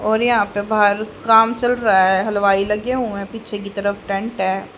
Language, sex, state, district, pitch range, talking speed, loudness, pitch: Hindi, male, Haryana, Rohtak, 200-225 Hz, 215 wpm, -18 LUFS, 205 Hz